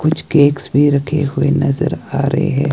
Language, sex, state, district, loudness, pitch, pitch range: Hindi, male, Himachal Pradesh, Shimla, -15 LUFS, 145 Hz, 140-150 Hz